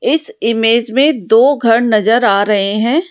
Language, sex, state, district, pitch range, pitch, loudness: Hindi, female, Rajasthan, Jaipur, 225-275 Hz, 230 Hz, -12 LUFS